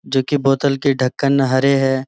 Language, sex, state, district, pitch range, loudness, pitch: Hindi, male, Jharkhand, Sahebganj, 130-140 Hz, -16 LUFS, 135 Hz